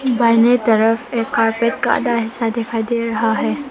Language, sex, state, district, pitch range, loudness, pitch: Hindi, female, Arunachal Pradesh, Papum Pare, 225-235 Hz, -17 LUFS, 230 Hz